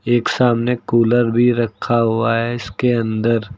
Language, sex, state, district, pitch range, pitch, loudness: Hindi, male, Uttar Pradesh, Lucknow, 115-120 Hz, 115 Hz, -17 LUFS